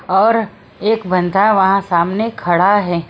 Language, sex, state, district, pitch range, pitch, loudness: Hindi, female, Maharashtra, Mumbai Suburban, 180-215 Hz, 195 Hz, -15 LUFS